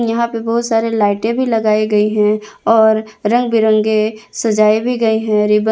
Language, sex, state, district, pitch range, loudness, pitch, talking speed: Hindi, female, Jharkhand, Palamu, 215-230 Hz, -14 LUFS, 220 Hz, 180 wpm